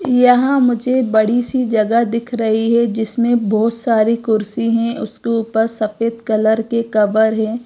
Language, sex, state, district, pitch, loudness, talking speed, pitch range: Hindi, female, Gujarat, Gandhinagar, 230 Hz, -16 LUFS, 155 wpm, 220-235 Hz